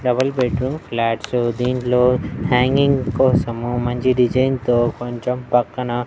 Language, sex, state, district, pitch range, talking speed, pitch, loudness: Telugu, male, Andhra Pradesh, Annamaya, 120-130 Hz, 120 wpm, 125 Hz, -19 LUFS